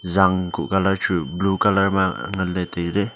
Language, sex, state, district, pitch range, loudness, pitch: Wancho, male, Arunachal Pradesh, Longding, 90-95 Hz, -21 LUFS, 95 Hz